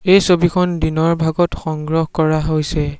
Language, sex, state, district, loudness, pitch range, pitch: Assamese, male, Assam, Sonitpur, -16 LUFS, 155-175 Hz, 160 Hz